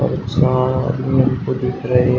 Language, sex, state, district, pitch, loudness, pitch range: Hindi, male, Uttar Pradesh, Shamli, 130 Hz, -17 LUFS, 125-130 Hz